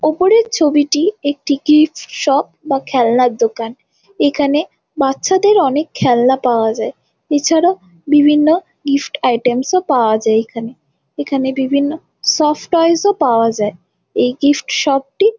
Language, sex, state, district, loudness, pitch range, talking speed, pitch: Bengali, female, West Bengal, Jalpaiguri, -14 LUFS, 250-315 Hz, 115 wpm, 285 Hz